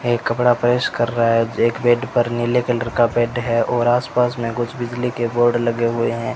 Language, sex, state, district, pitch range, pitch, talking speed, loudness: Hindi, male, Rajasthan, Bikaner, 115-120 Hz, 120 Hz, 225 wpm, -19 LUFS